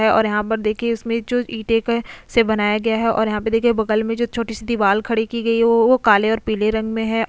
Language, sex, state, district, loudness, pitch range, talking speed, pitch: Hindi, female, Goa, North and South Goa, -19 LUFS, 220-230 Hz, 290 wpm, 225 Hz